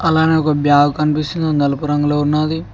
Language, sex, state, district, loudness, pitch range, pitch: Telugu, male, Telangana, Mahabubabad, -15 LUFS, 145-160 Hz, 150 Hz